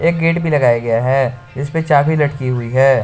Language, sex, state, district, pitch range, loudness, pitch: Hindi, male, Jharkhand, Garhwa, 125-155 Hz, -15 LUFS, 135 Hz